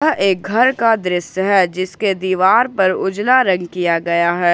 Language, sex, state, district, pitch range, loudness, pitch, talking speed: Hindi, male, Jharkhand, Ranchi, 180-210 Hz, -16 LUFS, 190 Hz, 185 wpm